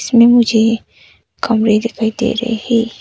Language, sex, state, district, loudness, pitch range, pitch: Hindi, female, Arunachal Pradesh, Papum Pare, -14 LUFS, 225-235 Hz, 230 Hz